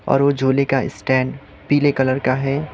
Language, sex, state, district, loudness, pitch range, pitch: Hindi, male, Sikkim, Gangtok, -18 LUFS, 130-140 Hz, 135 Hz